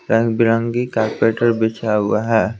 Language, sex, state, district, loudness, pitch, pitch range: Hindi, male, Bihar, Patna, -17 LUFS, 115 Hz, 110-115 Hz